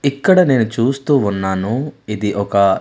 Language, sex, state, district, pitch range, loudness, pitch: Telugu, male, Andhra Pradesh, Manyam, 100-140 Hz, -16 LUFS, 115 Hz